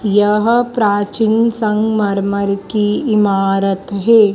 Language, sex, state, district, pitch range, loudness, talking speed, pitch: Hindi, female, Madhya Pradesh, Dhar, 200-220 Hz, -14 LUFS, 85 wpm, 210 Hz